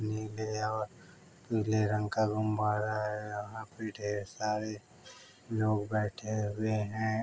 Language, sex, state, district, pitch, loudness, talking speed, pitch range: Hindi, male, Uttar Pradesh, Varanasi, 110 Hz, -34 LUFS, 125 wpm, 105-110 Hz